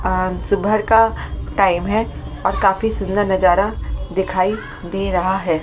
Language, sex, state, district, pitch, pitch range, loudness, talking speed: Hindi, female, Delhi, New Delhi, 195 Hz, 185-205 Hz, -18 LUFS, 140 wpm